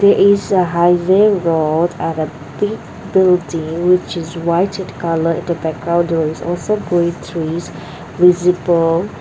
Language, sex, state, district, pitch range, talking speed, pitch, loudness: English, female, Nagaland, Dimapur, 165-180 Hz, 145 wpm, 170 Hz, -16 LUFS